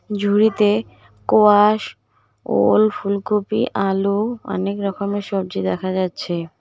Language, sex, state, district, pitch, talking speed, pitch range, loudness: Bengali, female, West Bengal, Cooch Behar, 200 Hz, 90 wpm, 185-210 Hz, -19 LUFS